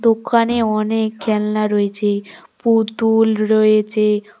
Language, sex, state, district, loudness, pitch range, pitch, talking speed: Bengali, female, West Bengal, Cooch Behar, -17 LUFS, 210-225 Hz, 215 Hz, 80 wpm